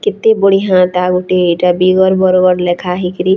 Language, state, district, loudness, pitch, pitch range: Sambalpuri, Odisha, Sambalpur, -11 LUFS, 185 Hz, 180-190 Hz